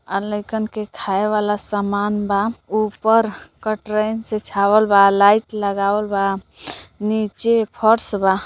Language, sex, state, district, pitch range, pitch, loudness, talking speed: Bhojpuri, female, Uttar Pradesh, Deoria, 200-215 Hz, 210 Hz, -19 LUFS, 130 wpm